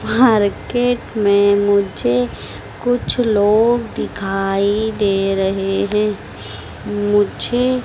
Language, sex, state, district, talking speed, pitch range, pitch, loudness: Hindi, female, Madhya Pradesh, Dhar, 75 wpm, 195-220 Hz, 205 Hz, -17 LUFS